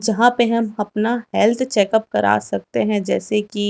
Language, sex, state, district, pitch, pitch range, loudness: Hindi, female, Chhattisgarh, Raipur, 215 Hz, 205-230 Hz, -19 LUFS